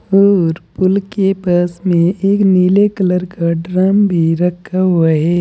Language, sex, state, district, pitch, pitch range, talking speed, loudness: Hindi, male, Uttar Pradesh, Saharanpur, 185 Hz, 175-195 Hz, 155 wpm, -13 LUFS